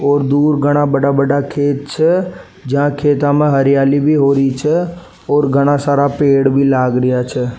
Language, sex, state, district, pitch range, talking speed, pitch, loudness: Rajasthani, male, Rajasthan, Nagaur, 135-145 Hz, 180 wpm, 140 Hz, -13 LUFS